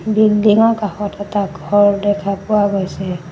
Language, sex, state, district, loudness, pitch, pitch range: Assamese, female, Assam, Sonitpur, -16 LUFS, 205 Hz, 195-210 Hz